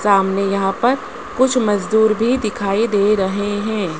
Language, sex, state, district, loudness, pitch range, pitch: Hindi, male, Rajasthan, Jaipur, -17 LUFS, 195-225 Hz, 205 Hz